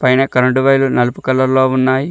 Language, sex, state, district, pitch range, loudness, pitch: Telugu, male, Telangana, Mahabubabad, 130-135 Hz, -13 LUFS, 130 Hz